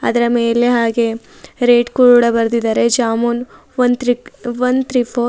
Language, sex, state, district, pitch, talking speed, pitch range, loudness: Kannada, female, Karnataka, Bidar, 240 Hz, 135 wpm, 235-245 Hz, -15 LUFS